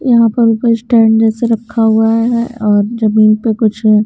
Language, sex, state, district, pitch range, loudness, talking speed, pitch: Hindi, female, Bihar, Patna, 215-235 Hz, -11 LUFS, 175 wpm, 225 Hz